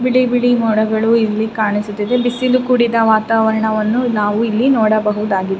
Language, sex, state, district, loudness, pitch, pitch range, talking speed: Kannada, female, Karnataka, Raichur, -15 LUFS, 220 Hz, 215-245 Hz, 120 wpm